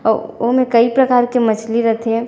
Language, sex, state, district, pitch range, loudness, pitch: Chhattisgarhi, female, Chhattisgarh, Raigarh, 225-245 Hz, -15 LUFS, 235 Hz